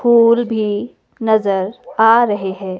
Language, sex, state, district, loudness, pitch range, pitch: Hindi, female, Himachal Pradesh, Shimla, -15 LUFS, 200-230 Hz, 220 Hz